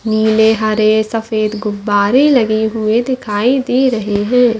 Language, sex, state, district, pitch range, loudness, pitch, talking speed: Hindi, female, Chhattisgarh, Bastar, 215-245 Hz, -13 LUFS, 220 Hz, 130 wpm